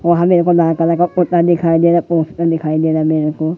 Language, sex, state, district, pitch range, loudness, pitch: Hindi, male, Madhya Pradesh, Katni, 160-170 Hz, -14 LUFS, 170 Hz